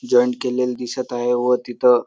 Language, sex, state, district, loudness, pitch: Marathi, male, Maharashtra, Dhule, -20 LUFS, 125 Hz